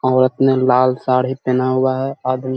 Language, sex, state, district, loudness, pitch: Hindi, male, Bihar, Jahanabad, -16 LUFS, 130 Hz